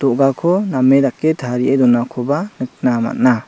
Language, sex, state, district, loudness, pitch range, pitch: Garo, male, Meghalaya, South Garo Hills, -16 LUFS, 125-160 Hz, 135 Hz